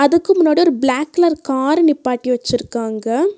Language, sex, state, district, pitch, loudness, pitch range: Tamil, female, Tamil Nadu, Nilgiris, 290 Hz, -16 LUFS, 250-335 Hz